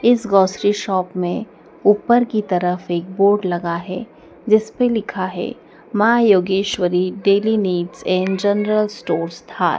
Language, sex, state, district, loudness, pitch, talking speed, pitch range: Hindi, female, Madhya Pradesh, Dhar, -18 LUFS, 195 Hz, 145 wpm, 180-215 Hz